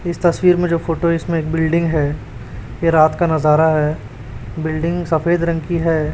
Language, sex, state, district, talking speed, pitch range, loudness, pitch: Hindi, male, Chhattisgarh, Raipur, 185 wpm, 150-170 Hz, -17 LUFS, 160 Hz